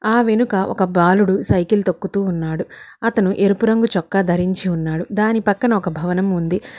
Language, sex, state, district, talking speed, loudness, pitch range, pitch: Telugu, female, Telangana, Hyderabad, 160 wpm, -18 LUFS, 180-215 Hz, 190 Hz